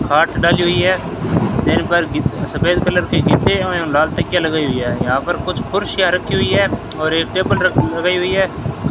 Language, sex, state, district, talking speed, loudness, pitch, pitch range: Hindi, male, Rajasthan, Bikaner, 180 wpm, -16 LUFS, 165 Hz, 145-180 Hz